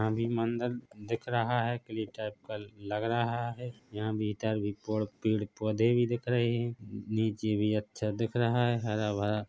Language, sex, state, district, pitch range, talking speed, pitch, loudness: Hindi, male, Chhattisgarh, Bilaspur, 105-120 Hz, 185 wpm, 110 Hz, -32 LUFS